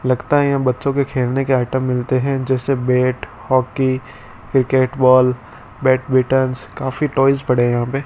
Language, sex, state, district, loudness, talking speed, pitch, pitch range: Hindi, male, Rajasthan, Bikaner, -17 LUFS, 165 wpm, 130 Hz, 125-135 Hz